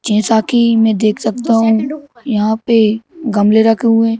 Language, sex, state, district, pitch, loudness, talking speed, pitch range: Hindi, male, Madhya Pradesh, Bhopal, 225 Hz, -13 LUFS, 170 wpm, 220-235 Hz